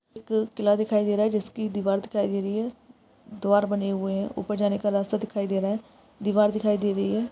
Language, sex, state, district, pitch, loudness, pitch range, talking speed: Hindi, female, Rajasthan, Nagaur, 210 Hz, -26 LUFS, 200-215 Hz, 245 wpm